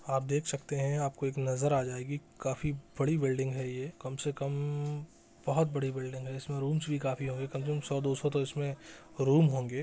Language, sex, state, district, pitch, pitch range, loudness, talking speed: Hindi, male, Bihar, Saran, 140 Hz, 135-145 Hz, -33 LUFS, 215 wpm